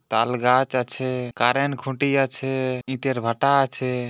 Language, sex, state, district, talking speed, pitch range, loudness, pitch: Bengali, male, West Bengal, Purulia, 115 wpm, 125-135 Hz, -22 LUFS, 130 Hz